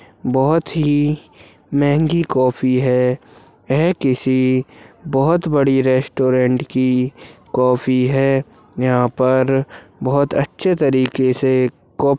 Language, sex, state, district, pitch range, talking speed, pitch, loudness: Hindi, male, Uttarakhand, Uttarkashi, 130-145 Hz, 105 wpm, 130 Hz, -17 LUFS